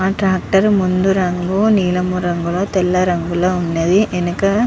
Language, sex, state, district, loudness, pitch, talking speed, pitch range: Telugu, male, Andhra Pradesh, Visakhapatnam, -16 LUFS, 185 Hz, 155 wpm, 180-195 Hz